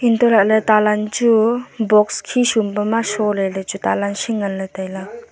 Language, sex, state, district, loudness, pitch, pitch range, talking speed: Wancho, female, Arunachal Pradesh, Longding, -17 LUFS, 215 Hz, 200-230 Hz, 170 wpm